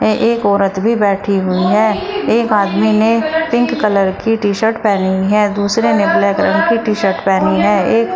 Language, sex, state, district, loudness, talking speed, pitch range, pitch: Hindi, female, Uttar Pradesh, Shamli, -13 LUFS, 190 wpm, 195-225 Hz, 210 Hz